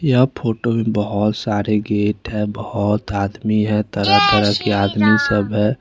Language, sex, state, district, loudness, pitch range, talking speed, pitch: Hindi, male, Chandigarh, Chandigarh, -18 LUFS, 105-110 Hz, 165 wpm, 105 Hz